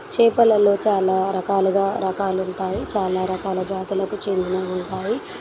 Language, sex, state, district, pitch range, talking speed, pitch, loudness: Telugu, female, Telangana, Nalgonda, 185-200 Hz, 110 wpm, 195 Hz, -21 LUFS